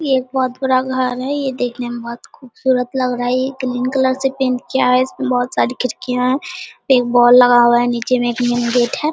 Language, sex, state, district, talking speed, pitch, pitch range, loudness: Hindi, female, Bihar, Saharsa, 245 wpm, 255 Hz, 245-265 Hz, -16 LUFS